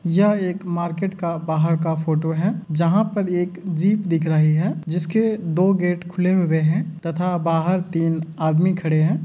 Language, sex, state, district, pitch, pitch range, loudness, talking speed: Hindi, male, Uttar Pradesh, Muzaffarnagar, 170 Hz, 160-185 Hz, -21 LUFS, 175 wpm